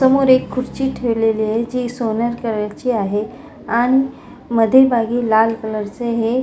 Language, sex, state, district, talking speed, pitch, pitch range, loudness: Marathi, female, Maharashtra, Pune, 170 wpm, 235 Hz, 225-255 Hz, -17 LUFS